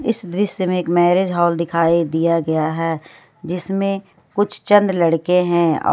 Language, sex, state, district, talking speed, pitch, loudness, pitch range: Hindi, female, Jharkhand, Ranchi, 160 wpm, 175 Hz, -18 LUFS, 165-195 Hz